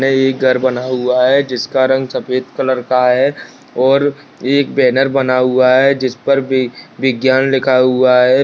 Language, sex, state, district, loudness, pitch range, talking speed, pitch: Hindi, male, Rajasthan, Nagaur, -13 LUFS, 125-135 Hz, 180 wpm, 130 Hz